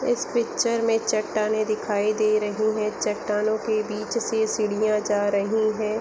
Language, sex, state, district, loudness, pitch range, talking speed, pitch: Hindi, female, Jharkhand, Sahebganj, -24 LUFS, 210-220 Hz, 170 wpm, 215 Hz